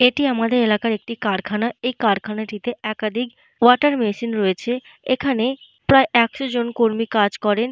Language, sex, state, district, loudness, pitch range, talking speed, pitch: Bengali, female, Jharkhand, Jamtara, -20 LUFS, 215-250 Hz, 140 wpm, 230 Hz